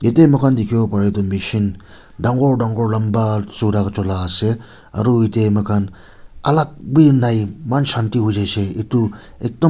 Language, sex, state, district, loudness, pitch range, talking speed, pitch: Nagamese, male, Nagaland, Kohima, -17 LUFS, 100-120 Hz, 160 wpm, 110 Hz